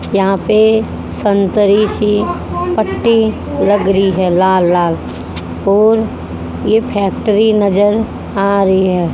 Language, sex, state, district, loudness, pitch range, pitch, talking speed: Hindi, female, Haryana, Jhajjar, -13 LUFS, 190-215 Hz, 200 Hz, 110 wpm